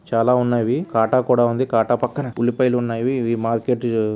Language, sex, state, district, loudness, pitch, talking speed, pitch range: Telugu, male, Andhra Pradesh, Visakhapatnam, -19 LUFS, 120 Hz, 190 wpm, 115-125 Hz